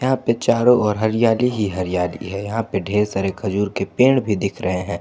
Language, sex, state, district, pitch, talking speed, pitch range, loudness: Hindi, male, Jharkhand, Palamu, 105 Hz, 225 wpm, 95-115 Hz, -19 LUFS